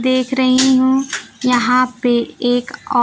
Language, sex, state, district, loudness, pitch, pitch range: Hindi, female, Bihar, Kaimur, -15 LUFS, 255 Hz, 245-260 Hz